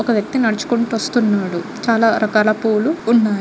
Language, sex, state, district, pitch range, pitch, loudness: Telugu, female, Andhra Pradesh, Guntur, 215-235 Hz, 225 Hz, -17 LUFS